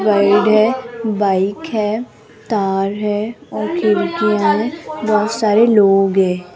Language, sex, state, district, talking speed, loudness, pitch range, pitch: Hindi, female, Rajasthan, Jaipur, 120 wpm, -16 LUFS, 200-225 Hz, 210 Hz